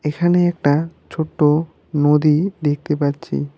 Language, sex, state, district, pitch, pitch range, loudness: Bengali, male, West Bengal, Alipurduar, 150 Hz, 145-165 Hz, -18 LUFS